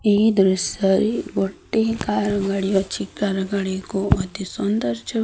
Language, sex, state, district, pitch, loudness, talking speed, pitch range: Odia, female, Odisha, Sambalpur, 195 Hz, -21 LUFS, 150 wpm, 190-205 Hz